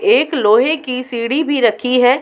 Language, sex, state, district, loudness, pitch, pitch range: Hindi, female, Uttar Pradesh, Muzaffarnagar, -15 LUFS, 255 Hz, 240-290 Hz